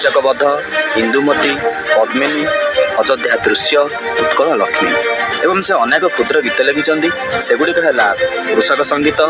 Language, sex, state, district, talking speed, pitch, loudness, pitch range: Odia, male, Odisha, Malkangiri, 115 wpm, 145 Hz, -13 LUFS, 130-160 Hz